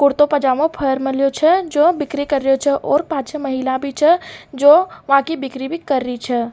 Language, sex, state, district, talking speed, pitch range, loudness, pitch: Rajasthani, female, Rajasthan, Nagaur, 210 wpm, 270-310 Hz, -17 LUFS, 280 Hz